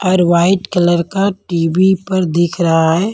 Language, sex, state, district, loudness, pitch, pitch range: Hindi, female, Punjab, Pathankot, -14 LUFS, 175 Hz, 170-190 Hz